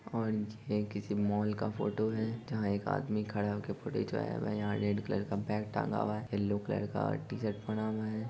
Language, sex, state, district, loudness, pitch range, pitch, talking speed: Hindi, male, Bihar, Sitamarhi, -35 LUFS, 105-110 Hz, 105 Hz, 215 wpm